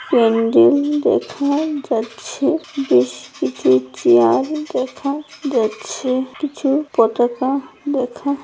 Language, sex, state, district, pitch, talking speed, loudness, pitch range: Bengali, female, West Bengal, Jalpaiguri, 265 Hz, 80 wpm, -18 LUFS, 225-290 Hz